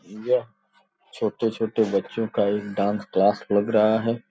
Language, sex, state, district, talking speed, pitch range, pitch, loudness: Hindi, male, Uttar Pradesh, Gorakhpur, 155 wpm, 100-115 Hz, 110 Hz, -23 LUFS